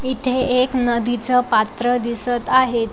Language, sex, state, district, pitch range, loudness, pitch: Marathi, female, Maharashtra, Dhule, 235-255 Hz, -18 LUFS, 245 Hz